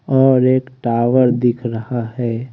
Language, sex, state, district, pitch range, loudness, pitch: Hindi, male, Haryana, Rohtak, 120-130 Hz, -16 LUFS, 125 Hz